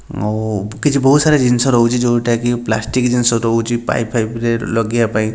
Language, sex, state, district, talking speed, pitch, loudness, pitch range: Odia, male, Odisha, Nuapada, 180 wpm, 115 Hz, -15 LUFS, 115-120 Hz